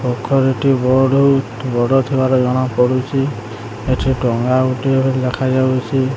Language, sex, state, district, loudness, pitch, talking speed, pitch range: Odia, male, Odisha, Sambalpur, -16 LUFS, 130 Hz, 115 wpm, 125-135 Hz